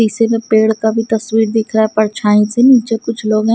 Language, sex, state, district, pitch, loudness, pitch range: Hindi, female, Punjab, Kapurthala, 220 Hz, -13 LUFS, 215-225 Hz